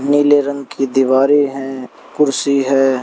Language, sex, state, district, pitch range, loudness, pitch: Hindi, male, Haryana, Rohtak, 135-140 Hz, -15 LUFS, 135 Hz